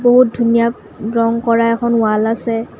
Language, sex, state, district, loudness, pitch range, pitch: Assamese, female, Assam, Kamrup Metropolitan, -15 LUFS, 230-235 Hz, 230 Hz